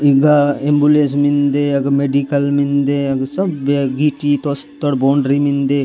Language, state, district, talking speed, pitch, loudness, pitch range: Gondi, Chhattisgarh, Sukma, 135 wpm, 140 Hz, -15 LUFS, 140-145 Hz